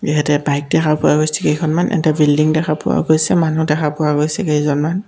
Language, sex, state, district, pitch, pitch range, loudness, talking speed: Assamese, male, Assam, Kamrup Metropolitan, 155 Hz, 150-160 Hz, -15 LUFS, 190 wpm